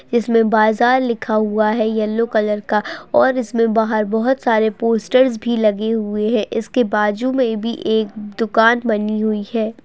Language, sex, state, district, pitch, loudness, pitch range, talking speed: Hindi, female, Bihar, Bhagalpur, 225 Hz, -17 LUFS, 215-235 Hz, 165 wpm